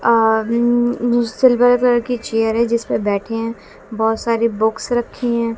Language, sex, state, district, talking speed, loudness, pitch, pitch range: Hindi, female, Haryana, Jhajjar, 185 wpm, -17 LUFS, 235 Hz, 225-240 Hz